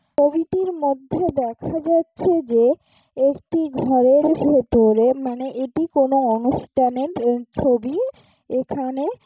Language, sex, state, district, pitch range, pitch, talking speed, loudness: Bengali, female, West Bengal, Jalpaiguri, 255-320 Hz, 275 Hz, 90 wpm, -20 LUFS